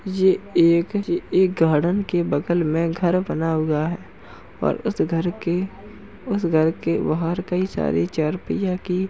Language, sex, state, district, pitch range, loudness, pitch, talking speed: Hindi, male, Uttar Pradesh, Jalaun, 165-185 Hz, -22 LUFS, 175 Hz, 170 wpm